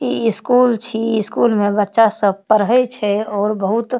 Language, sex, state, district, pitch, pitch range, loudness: Maithili, female, Bihar, Supaul, 220 Hz, 205-235 Hz, -16 LUFS